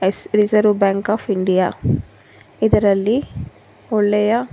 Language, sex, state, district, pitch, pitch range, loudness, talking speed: Kannada, female, Karnataka, Bangalore, 210 Hz, 195-215 Hz, -17 LUFS, 95 wpm